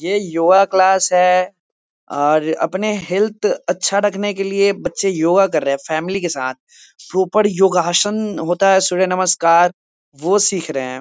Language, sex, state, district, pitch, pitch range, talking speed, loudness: Hindi, male, Bihar, Muzaffarpur, 185 Hz, 170-200 Hz, 165 wpm, -16 LUFS